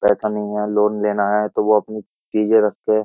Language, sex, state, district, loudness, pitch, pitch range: Hindi, male, Uttar Pradesh, Jyotiba Phule Nagar, -18 LUFS, 105 Hz, 105-110 Hz